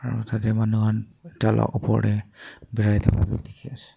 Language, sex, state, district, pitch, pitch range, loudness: Nagamese, male, Nagaland, Dimapur, 110 Hz, 105-115 Hz, -24 LUFS